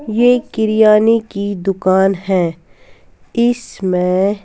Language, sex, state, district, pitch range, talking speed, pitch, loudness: Hindi, female, Bihar, West Champaran, 190-225 Hz, 95 wpm, 200 Hz, -15 LUFS